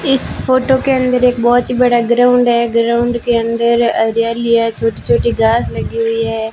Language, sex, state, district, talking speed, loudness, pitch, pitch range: Hindi, female, Rajasthan, Bikaner, 195 wpm, -13 LUFS, 235 Hz, 230-245 Hz